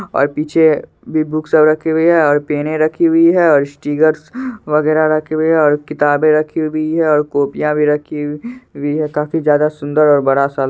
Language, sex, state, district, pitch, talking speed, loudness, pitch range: Hindi, male, Bihar, Supaul, 155 Hz, 210 wpm, -14 LUFS, 150-155 Hz